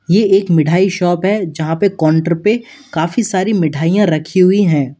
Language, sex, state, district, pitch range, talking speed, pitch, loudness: Hindi, male, Uttar Pradesh, Lalitpur, 160-200 Hz, 180 wpm, 180 Hz, -14 LUFS